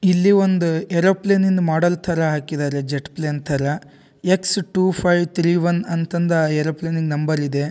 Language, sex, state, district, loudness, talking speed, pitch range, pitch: Kannada, male, Karnataka, Dharwad, -19 LUFS, 165 wpm, 150-180 Hz, 170 Hz